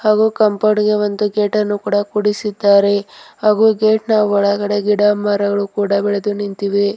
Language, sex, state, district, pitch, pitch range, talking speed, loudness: Kannada, female, Karnataka, Bidar, 205 Hz, 200-210 Hz, 130 wpm, -15 LUFS